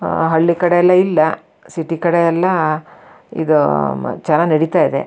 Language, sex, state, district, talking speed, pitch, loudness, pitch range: Kannada, female, Karnataka, Shimoga, 140 wpm, 165 Hz, -15 LUFS, 155-175 Hz